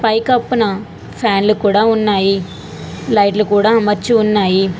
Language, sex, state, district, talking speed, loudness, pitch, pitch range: Telugu, female, Telangana, Hyderabad, 100 wpm, -14 LUFS, 210 Hz, 200-225 Hz